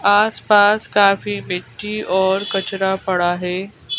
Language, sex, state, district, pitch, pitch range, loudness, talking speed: Hindi, female, Madhya Pradesh, Bhopal, 195 Hz, 190-205 Hz, -18 LUFS, 105 wpm